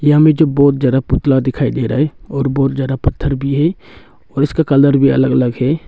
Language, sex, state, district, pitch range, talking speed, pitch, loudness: Hindi, male, Arunachal Pradesh, Longding, 130-145 Hz, 235 wpm, 140 Hz, -14 LUFS